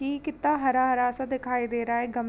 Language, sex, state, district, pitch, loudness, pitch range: Hindi, female, Uttar Pradesh, Jalaun, 255 Hz, -27 LUFS, 240-275 Hz